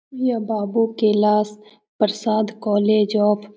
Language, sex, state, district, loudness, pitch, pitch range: Hindi, female, Bihar, Saran, -20 LUFS, 215 Hz, 210-220 Hz